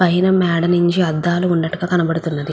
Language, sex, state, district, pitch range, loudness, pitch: Telugu, female, Andhra Pradesh, Guntur, 165-180 Hz, -17 LUFS, 175 Hz